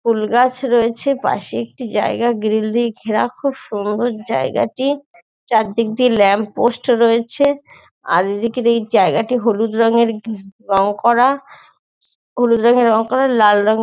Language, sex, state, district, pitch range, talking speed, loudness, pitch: Bengali, female, West Bengal, North 24 Parganas, 215-245 Hz, 135 wpm, -16 LUFS, 230 Hz